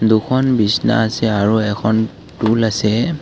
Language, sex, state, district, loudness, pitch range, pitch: Assamese, male, Assam, Kamrup Metropolitan, -16 LUFS, 105-115 Hz, 110 Hz